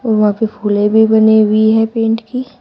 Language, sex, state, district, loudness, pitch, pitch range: Hindi, female, Uttar Pradesh, Shamli, -12 LUFS, 220 Hz, 215-225 Hz